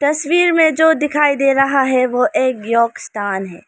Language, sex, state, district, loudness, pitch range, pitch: Hindi, female, Arunachal Pradesh, Lower Dibang Valley, -15 LUFS, 235-300 Hz, 275 Hz